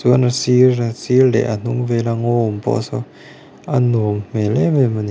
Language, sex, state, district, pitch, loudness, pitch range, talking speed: Mizo, male, Mizoram, Aizawl, 120 Hz, -17 LUFS, 115-130 Hz, 200 wpm